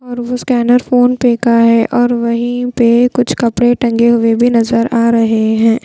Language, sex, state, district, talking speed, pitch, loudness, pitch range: Hindi, female, Bihar, Patna, 195 wpm, 235 Hz, -12 LUFS, 230-245 Hz